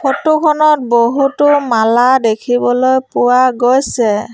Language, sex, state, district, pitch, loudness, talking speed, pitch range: Assamese, female, Assam, Sonitpur, 255 Hz, -12 LUFS, 95 wpm, 240-280 Hz